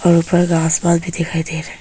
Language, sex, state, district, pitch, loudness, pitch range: Hindi, female, Arunachal Pradesh, Papum Pare, 170 Hz, -16 LUFS, 160-170 Hz